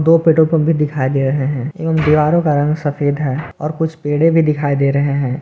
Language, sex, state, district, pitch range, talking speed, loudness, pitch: Hindi, male, Jharkhand, Garhwa, 140-160 Hz, 245 wpm, -15 LUFS, 150 Hz